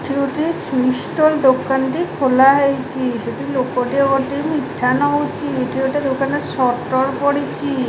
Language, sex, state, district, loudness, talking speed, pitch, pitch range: Odia, female, Odisha, Khordha, -17 LUFS, 135 wpm, 270 Hz, 260-285 Hz